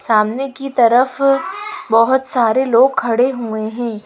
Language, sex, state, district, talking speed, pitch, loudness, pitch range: Hindi, female, Madhya Pradesh, Bhopal, 135 wpm, 245 Hz, -15 LUFS, 230-270 Hz